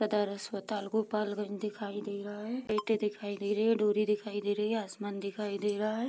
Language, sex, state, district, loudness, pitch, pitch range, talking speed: Hindi, female, Bihar, Vaishali, -33 LUFS, 210 Hz, 205-215 Hz, 215 wpm